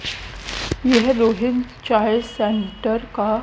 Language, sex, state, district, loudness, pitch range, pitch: Hindi, female, Haryana, Jhajjar, -20 LUFS, 220-245 Hz, 225 Hz